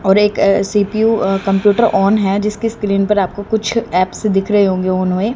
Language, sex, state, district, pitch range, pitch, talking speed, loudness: Hindi, female, Haryana, Rohtak, 195-210 Hz, 205 Hz, 210 wpm, -15 LUFS